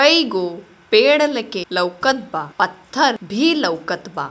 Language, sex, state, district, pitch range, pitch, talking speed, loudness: Bhojpuri, female, Bihar, Gopalganj, 185-295 Hz, 250 Hz, 140 wpm, -18 LUFS